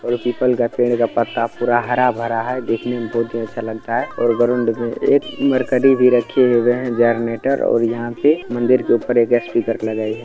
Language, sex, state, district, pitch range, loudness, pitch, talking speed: Hindi, male, Bihar, Supaul, 115-125 Hz, -17 LUFS, 120 Hz, 205 wpm